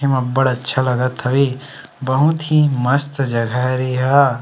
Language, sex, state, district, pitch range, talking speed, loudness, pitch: Chhattisgarhi, male, Chhattisgarh, Sarguja, 125-140 Hz, 165 wpm, -17 LUFS, 130 Hz